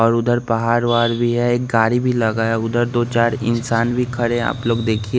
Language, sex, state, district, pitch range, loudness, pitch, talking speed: Hindi, male, Bihar, West Champaran, 115-120 Hz, -18 LUFS, 120 Hz, 240 wpm